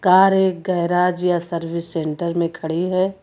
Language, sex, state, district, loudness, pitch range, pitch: Hindi, female, Uttar Pradesh, Lucknow, -20 LUFS, 170-185 Hz, 175 Hz